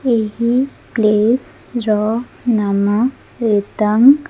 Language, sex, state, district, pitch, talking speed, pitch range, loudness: Odia, female, Odisha, Khordha, 225 Hz, 70 wpm, 210-245 Hz, -16 LUFS